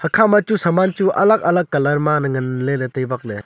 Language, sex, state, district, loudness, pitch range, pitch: Wancho, male, Arunachal Pradesh, Longding, -17 LUFS, 130-190 Hz, 150 Hz